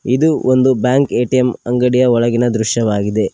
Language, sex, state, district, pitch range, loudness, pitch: Kannada, male, Karnataka, Koppal, 115-130 Hz, -14 LUFS, 125 Hz